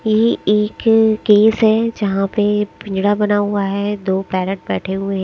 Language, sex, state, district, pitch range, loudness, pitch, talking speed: Hindi, female, Himachal Pradesh, Shimla, 195-220 Hz, -16 LUFS, 205 Hz, 160 wpm